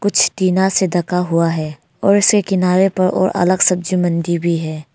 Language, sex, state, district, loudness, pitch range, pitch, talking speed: Hindi, female, Arunachal Pradesh, Longding, -15 LUFS, 170-190 Hz, 180 Hz, 180 wpm